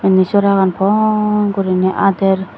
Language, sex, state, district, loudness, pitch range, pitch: Chakma, female, Tripura, Dhalai, -14 LUFS, 190-205 Hz, 195 Hz